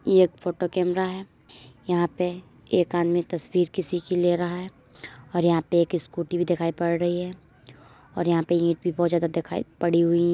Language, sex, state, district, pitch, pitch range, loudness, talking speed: Hindi, female, Uttar Pradesh, Muzaffarnagar, 175 Hz, 165-175 Hz, -25 LUFS, 210 wpm